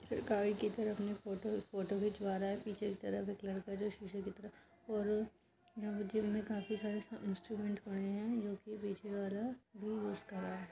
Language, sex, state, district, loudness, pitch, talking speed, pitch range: Hindi, female, Uttar Pradesh, Budaun, -41 LUFS, 205 Hz, 205 wpm, 200-215 Hz